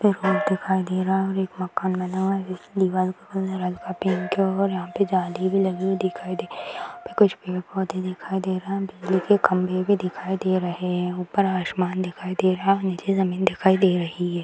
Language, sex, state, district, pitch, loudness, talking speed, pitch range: Hindi, female, Bihar, Bhagalpur, 185 Hz, -24 LUFS, 270 wpm, 185-190 Hz